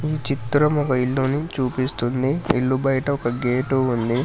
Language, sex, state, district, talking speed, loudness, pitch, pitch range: Telugu, male, Telangana, Hyderabad, 140 wpm, -21 LUFS, 130 Hz, 125-140 Hz